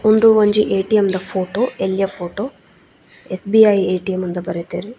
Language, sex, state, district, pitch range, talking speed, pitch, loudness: Tulu, female, Karnataka, Dakshina Kannada, 185-215 Hz, 130 wpm, 195 Hz, -17 LUFS